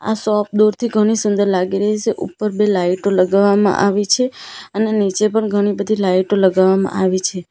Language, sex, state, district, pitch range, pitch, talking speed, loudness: Gujarati, female, Gujarat, Valsad, 195-215 Hz, 205 Hz, 185 wpm, -16 LUFS